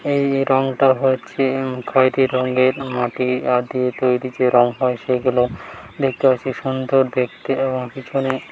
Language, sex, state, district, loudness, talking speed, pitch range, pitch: Bengali, male, West Bengal, Dakshin Dinajpur, -19 LUFS, 140 wpm, 125-135 Hz, 130 Hz